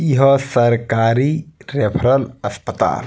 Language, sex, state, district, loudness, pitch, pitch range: Bhojpuri, male, Bihar, East Champaran, -17 LUFS, 130 Hz, 120-140 Hz